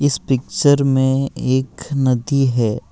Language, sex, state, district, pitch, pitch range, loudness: Hindi, male, Assam, Kamrup Metropolitan, 135 Hz, 130-140 Hz, -17 LUFS